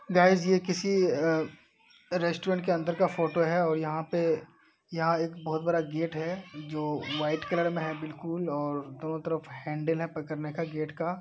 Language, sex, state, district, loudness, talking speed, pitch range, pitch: Hindi, male, Uttar Pradesh, Hamirpur, -30 LUFS, 180 wpm, 155-175 Hz, 165 Hz